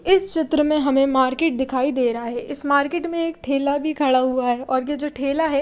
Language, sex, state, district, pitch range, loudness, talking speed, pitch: Hindi, female, Haryana, Rohtak, 260-310 Hz, -20 LUFS, 245 wpm, 280 Hz